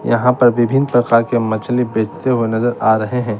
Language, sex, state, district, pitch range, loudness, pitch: Hindi, male, Bihar, West Champaran, 110-125 Hz, -15 LUFS, 120 Hz